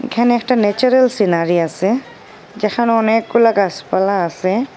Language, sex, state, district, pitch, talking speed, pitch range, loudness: Bengali, female, Assam, Hailakandi, 215 Hz, 115 wpm, 195-240 Hz, -15 LUFS